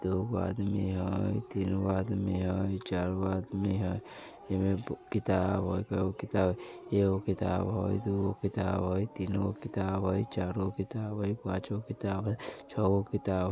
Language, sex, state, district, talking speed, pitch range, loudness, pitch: Maithili, male, Bihar, Vaishali, 165 wpm, 95-100 Hz, -32 LUFS, 95 Hz